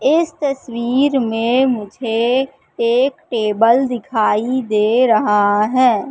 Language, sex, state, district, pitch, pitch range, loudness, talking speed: Hindi, female, Madhya Pradesh, Katni, 245 Hz, 225-265 Hz, -16 LUFS, 100 wpm